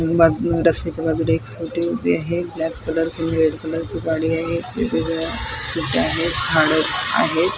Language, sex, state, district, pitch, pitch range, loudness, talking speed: Marathi, female, Maharashtra, Mumbai Suburban, 165 Hz, 160-165 Hz, -20 LUFS, 150 wpm